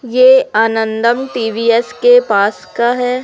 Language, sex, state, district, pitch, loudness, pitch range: Hindi, female, Madhya Pradesh, Umaria, 235 Hz, -12 LUFS, 225-255 Hz